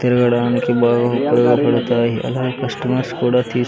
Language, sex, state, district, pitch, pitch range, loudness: Telugu, male, Andhra Pradesh, Sri Satya Sai, 120 Hz, 120-125 Hz, -17 LUFS